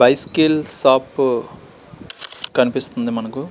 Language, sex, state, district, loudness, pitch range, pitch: Telugu, male, Andhra Pradesh, Srikakulam, -15 LUFS, 125-140 Hz, 130 Hz